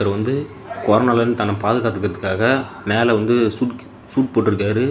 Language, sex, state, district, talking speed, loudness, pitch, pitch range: Tamil, male, Tamil Nadu, Namakkal, 145 wpm, -19 LUFS, 115 Hz, 105-125 Hz